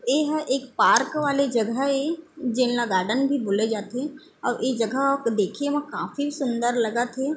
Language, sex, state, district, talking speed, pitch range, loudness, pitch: Chhattisgarhi, female, Chhattisgarh, Bilaspur, 180 wpm, 235-285 Hz, -24 LUFS, 265 Hz